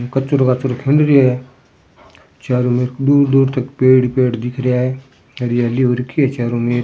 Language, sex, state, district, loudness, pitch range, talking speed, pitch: Rajasthani, male, Rajasthan, Churu, -15 LUFS, 120-135 Hz, 195 wpm, 130 Hz